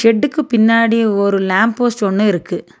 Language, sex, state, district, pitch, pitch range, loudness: Tamil, female, Tamil Nadu, Nilgiris, 225 Hz, 200-230 Hz, -14 LUFS